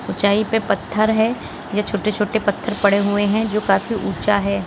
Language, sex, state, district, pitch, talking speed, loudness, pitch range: Hindi, female, Uttar Pradesh, Lalitpur, 210 Hz, 190 wpm, -19 LUFS, 200-220 Hz